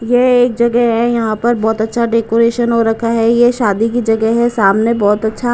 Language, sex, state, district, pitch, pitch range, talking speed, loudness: Hindi, female, Punjab, Kapurthala, 230 Hz, 225-240 Hz, 225 wpm, -13 LUFS